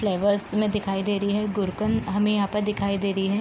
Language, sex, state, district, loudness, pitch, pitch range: Hindi, female, Bihar, Gopalganj, -24 LUFS, 205 Hz, 200-210 Hz